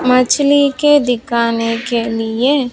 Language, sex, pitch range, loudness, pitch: Hindi, female, 230-280 Hz, -14 LUFS, 245 Hz